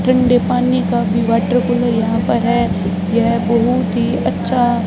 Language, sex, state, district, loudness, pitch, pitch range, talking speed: Hindi, female, Rajasthan, Bikaner, -15 LUFS, 230 Hz, 220-240 Hz, 160 wpm